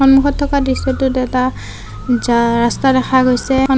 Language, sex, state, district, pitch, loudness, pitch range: Assamese, female, Assam, Sonitpur, 260 Hz, -14 LUFS, 250-270 Hz